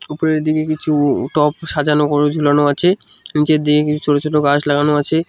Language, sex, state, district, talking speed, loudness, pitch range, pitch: Bengali, male, West Bengal, Cooch Behar, 180 wpm, -16 LUFS, 145-155 Hz, 150 Hz